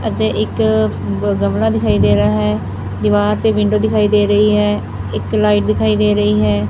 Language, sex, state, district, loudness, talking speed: Punjabi, female, Punjab, Fazilka, -15 LUFS, 190 wpm